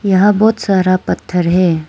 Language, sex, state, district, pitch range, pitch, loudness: Hindi, female, Arunachal Pradesh, Lower Dibang Valley, 180-205 Hz, 185 Hz, -13 LUFS